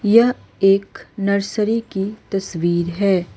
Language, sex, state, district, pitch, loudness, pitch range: Hindi, female, Chhattisgarh, Raipur, 200 Hz, -19 LUFS, 195-220 Hz